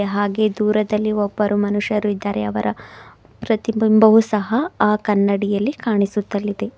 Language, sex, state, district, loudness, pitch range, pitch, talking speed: Kannada, female, Karnataka, Bidar, -18 LUFS, 200-215 Hz, 210 Hz, 95 wpm